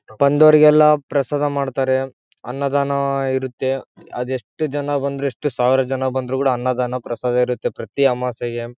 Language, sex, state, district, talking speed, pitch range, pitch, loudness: Kannada, male, Karnataka, Bellary, 125 wpm, 125-140 Hz, 135 Hz, -19 LUFS